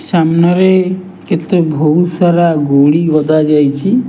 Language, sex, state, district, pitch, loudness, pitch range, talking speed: Odia, male, Odisha, Nuapada, 170 Hz, -11 LUFS, 155-185 Hz, 100 wpm